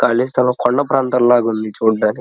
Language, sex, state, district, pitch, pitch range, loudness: Telugu, male, Andhra Pradesh, Krishna, 120 Hz, 110-125 Hz, -15 LUFS